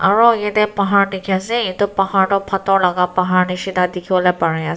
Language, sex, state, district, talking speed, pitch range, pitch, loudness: Nagamese, female, Nagaland, Kohima, 190 wpm, 180-200 Hz, 190 Hz, -16 LUFS